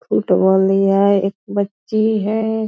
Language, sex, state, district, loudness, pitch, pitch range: Hindi, female, Bihar, Purnia, -16 LUFS, 200 Hz, 195-215 Hz